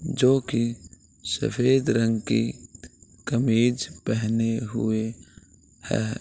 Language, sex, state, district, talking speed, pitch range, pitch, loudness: Hindi, male, Bihar, Gopalganj, 95 wpm, 110-120 Hz, 115 Hz, -25 LUFS